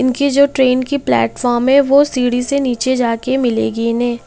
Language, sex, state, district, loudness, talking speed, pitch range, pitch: Hindi, female, Bihar, Kaimur, -14 LUFS, 185 wpm, 240-275 Hz, 255 Hz